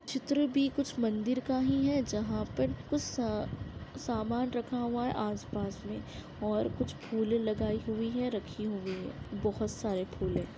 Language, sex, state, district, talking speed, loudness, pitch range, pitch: Hindi, female, Maharashtra, Nagpur, 170 wpm, -33 LUFS, 210-255 Hz, 225 Hz